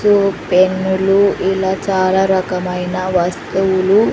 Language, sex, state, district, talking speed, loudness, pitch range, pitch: Telugu, female, Andhra Pradesh, Sri Satya Sai, 70 wpm, -15 LUFS, 185-195 Hz, 190 Hz